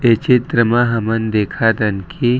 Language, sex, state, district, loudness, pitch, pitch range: Chhattisgarhi, male, Chhattisgarh, Raigarh, -16 LUFS, 115 Hz, 110-120 Hz